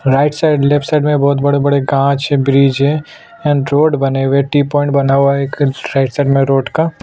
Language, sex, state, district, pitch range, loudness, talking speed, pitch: Hindi, male, Chhattisgarh, Sukma, 135-145 Hz, -13 LUFS, 220 wpm, 140 Hz